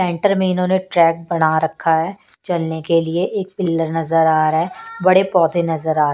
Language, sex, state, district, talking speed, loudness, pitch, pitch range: Hindi, female, Punjab, Pathankot, 185 wpm, -17 LUFS, 170 Hz, 160-185 Hz